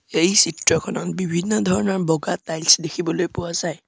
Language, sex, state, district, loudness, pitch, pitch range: Assamese, male, Assam, Sonitpur, -20 LUFS, 175 Hz, 165-185 Hz